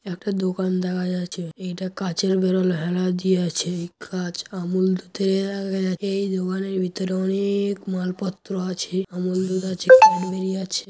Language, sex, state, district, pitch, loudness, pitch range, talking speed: Bengali, male, West Bengal, Malda, 185 Hz, -22 LUFS, 180-190 Hz, 145 wpm